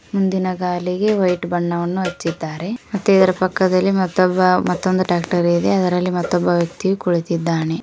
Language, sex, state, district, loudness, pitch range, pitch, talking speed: Kannada, female, Karnataka, Koppal, -18 LUFS, 175-190 Hz, 180 Hz, 120 wpm